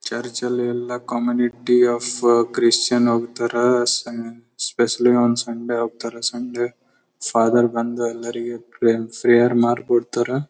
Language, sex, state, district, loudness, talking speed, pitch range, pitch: Kannada, male, Karnataka, Bellary, -20 LUFS, 85 wpm, 115-120 Hz, 120 Hz